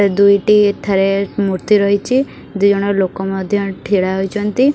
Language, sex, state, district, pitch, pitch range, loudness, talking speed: Odia, female, Odisha, Khordha, 200 Hz, 195-205 Hz, -15 LUFS, 125 wpm